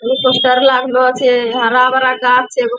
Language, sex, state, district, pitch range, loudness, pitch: Angika, female, Bihar, Bhagalpur, 250-260 Hz, -12 LUFS, 255 Hz